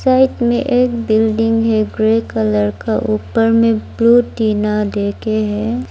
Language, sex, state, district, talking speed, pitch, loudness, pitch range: Hindi, female, Arunachal Pradesh, Lower Dibang Valley, 150 wpm, 220 Hz, -15 LUFS, 210-230 Hz